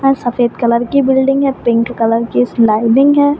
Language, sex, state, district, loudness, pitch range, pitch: Hindi, female, Jharkhand, Sahebganj, -13 LUFS, 235-270 Hz, 245 Hz